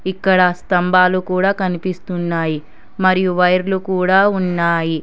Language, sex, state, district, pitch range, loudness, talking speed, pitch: Telugu, male, Telangana, Hyderabad, 175-190 Hz, -16 LUFS, 95 wpm, 185 Hz